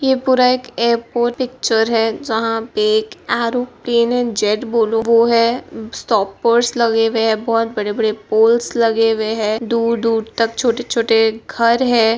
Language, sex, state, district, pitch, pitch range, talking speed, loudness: Hindi, female, Bihar, Kishanganj, 230 Hz, 225-240 Hz, 140 wpm, -16 LUFS